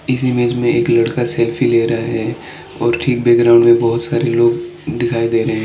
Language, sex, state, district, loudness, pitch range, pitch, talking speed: Hindi, male, Arunachal Pradesh, Lower Dibang Valley, -14 LUFS, 115-120 Hz, 120 Hz, 200 wpm